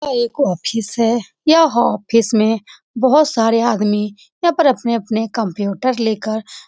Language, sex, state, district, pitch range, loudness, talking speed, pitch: Hindi, female, Bihar, Saran, 215-255 Hz, -16 LUFS, 155 wpm, 230 Hz